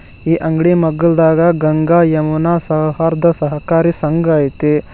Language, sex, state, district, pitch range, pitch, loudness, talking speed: Kannada, male, Karnataka, Koppal, 155-165 Hz, 160 Hz, -13 LUFS, 110 wpm